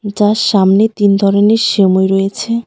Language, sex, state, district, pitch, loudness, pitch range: Bengali, female, West Bengal, Alipurduar, 205 Hz, -11 LUFS, 195-220 Hz